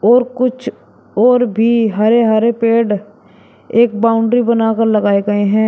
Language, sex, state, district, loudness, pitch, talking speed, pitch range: Hindi, male, Uttar Pradesh, Shamli, -13 LUFS, 225 Hz, 135 wpm, 210-235 Hz